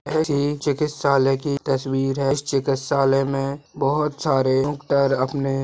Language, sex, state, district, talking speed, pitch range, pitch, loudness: Hindi, male, Bihar, Purnia, 125 wpm, 135-145 Hz, 140 Hz, -21 LUFS